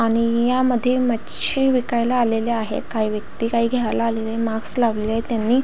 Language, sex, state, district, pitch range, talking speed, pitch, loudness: Marathi, female, Maharashtra, Pune, 225-245 Hz, 170 wpm, 230 Hz, -19 LUFS